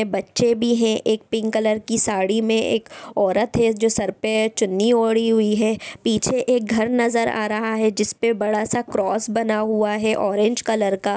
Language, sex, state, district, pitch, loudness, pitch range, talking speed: Hindi, female, Bihar, East Champaran, 220 Hz, -20 LUFS, 215-230 Hz, 200 wpm